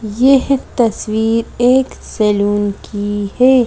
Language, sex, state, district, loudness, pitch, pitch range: Hindi, female, Madhya Pradesh, Bhopal, -15 LUFS, 225 Hz, 205-255 Hz